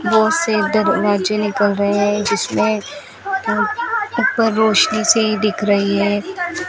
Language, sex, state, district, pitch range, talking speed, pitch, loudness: Hindi, female, Rajasthan, Bikaner, 205-290 Hz, 115 wpm, 215 Hz, -17 LUFS